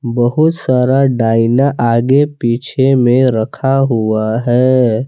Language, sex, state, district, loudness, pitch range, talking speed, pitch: Hindi, male, Jharkhand, Palamu, -12 LUFS, 115-135 Hz, 105 wpm, 125 Hz